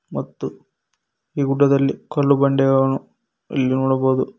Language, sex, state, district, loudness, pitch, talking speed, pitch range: Kannada, male, Karnataka, Koppal, -19 LUFS, 135 Hz, 95 wpm, 135-140 Hz